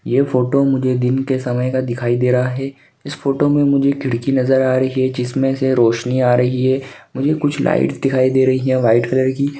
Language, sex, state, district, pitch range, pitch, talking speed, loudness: Hindi, male, Maharashtra, Sindhudurg, 125-135 Hz, 130 Hz, 225 wpm, -16 LUFS